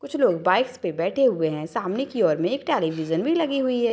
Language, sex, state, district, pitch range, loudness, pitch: Hindi, female, Bihar, Madhepura, 165-260 Hz, -23 LUFS, 230 Hz